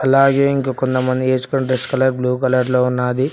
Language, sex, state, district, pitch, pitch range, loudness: Telugu, male, Telangana, Hyderabad, 130 Hz, 130-135 Hz, -17 LUFS